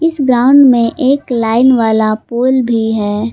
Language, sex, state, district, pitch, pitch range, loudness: Hindi, female, Jharkhand, Palamu, 240 Hz, 225-260 Hz, -11 LUFS